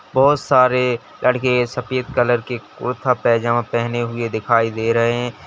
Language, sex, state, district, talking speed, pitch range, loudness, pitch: Hindi, male, Uttar Pradesh, Lalitpur, 155 wpm, 115-125 Hz, -18 LUFS, 120 Hz